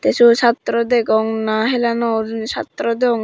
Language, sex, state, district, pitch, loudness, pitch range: Chakma, female, Tripura, Dhalai, 230 Hz, -17 LUFS, 220-235 Hz